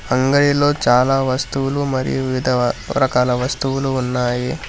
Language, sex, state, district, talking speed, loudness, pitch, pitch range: Telugu, male, Telangana, Hyderabad, 100 wpm, -18 LUFS, 130 Hz, 125-135 Hz